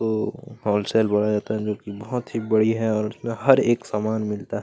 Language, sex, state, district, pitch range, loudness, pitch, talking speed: Hindi, male, Chhattisgarh, Kabirdham, 105-115 Hz, -23 LUFS, 110 Hz, 205 wpm